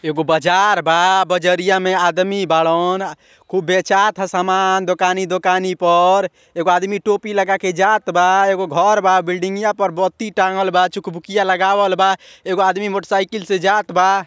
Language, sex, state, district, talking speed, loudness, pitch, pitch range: Bhojpuri, male, Uttar Pradesh, Ghazipur, 165 wpm, -16 LUFS, 190 Hz, 180-195 Hz